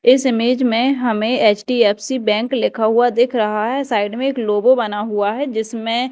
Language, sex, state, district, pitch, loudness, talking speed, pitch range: Hindi, female, Madhya Pradesh, Dhar, 230 Hz, -17 LUFS, 185 wpm, 215-255 Hz